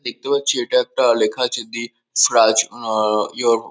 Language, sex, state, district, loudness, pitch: Bengali, male, West Bengal, North 24 Parganas, -18 LUFS, 120 Hz